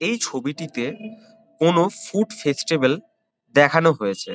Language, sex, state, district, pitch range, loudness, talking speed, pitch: Bengali, male, West Bengal, Kolkata, 145-220 Hz, -21 LUFS, 95 wpm, 165 Hz